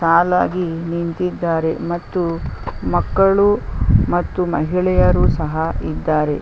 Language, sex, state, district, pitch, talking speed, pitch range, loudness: Kannada, female, Karnataka, Chamarajanagar, 165 Hz, 85 wpm, 150-180 Hz, -18 LUFS